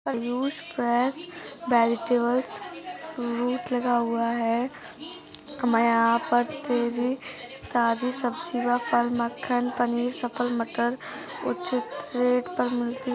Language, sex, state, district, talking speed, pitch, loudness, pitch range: Hindi, female, Maharashtra, Solapur, 100 wpm, 245 Hz, -26 LUFS, 235-255 Hz